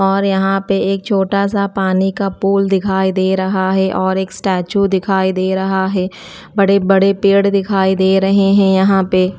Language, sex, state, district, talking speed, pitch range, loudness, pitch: Hindi, female, Chandigarh, Chandigarh, 185 wpm, 190-195 Hz, -14 LUFS, 195 Hz